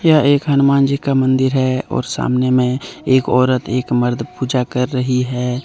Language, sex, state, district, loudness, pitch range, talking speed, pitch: Hindi, male, Jharkhand, Deoghar, -16 LUFS, 125-135 Hz, 190 wpm, 130 Hz